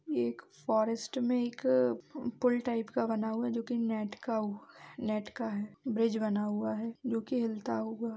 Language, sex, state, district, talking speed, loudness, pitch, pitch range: Hindi, female, Bihar, East Champaran, 170 wpm, -33 LUFS, 225 Hz, 215-240 Hz